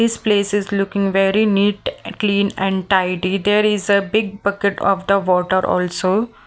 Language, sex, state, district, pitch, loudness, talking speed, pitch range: English, female, Maharashtra, Mumbai Suburban, 200 Hz, -18 LUFS, 165 wpm, 195-205 Hz